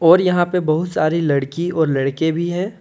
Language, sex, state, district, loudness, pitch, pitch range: Hindi, male, Jharkhand, Deoghar, -18 LUFS, 165 Hz, 155-175 Hz